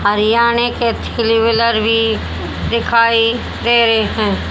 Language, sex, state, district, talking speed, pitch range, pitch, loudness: Hindi, female, Haryana, Jhajjar, 120 wpm, 225-235 Hz, 230 Hz, -14 LUFS